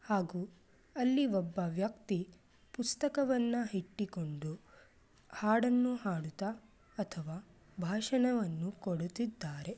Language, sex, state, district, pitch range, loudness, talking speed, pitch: Kannada, female, Karnataka, Mysore, 180-235 Hz, -35 LUFS, 65 wpm, 200 Hz